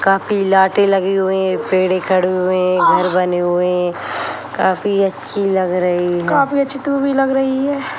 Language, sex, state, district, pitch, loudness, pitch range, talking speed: Hindi, female, Bihar, Sitamarhi, 190 Hz, -16 LUFS, 185-215 Hz, 185 wpm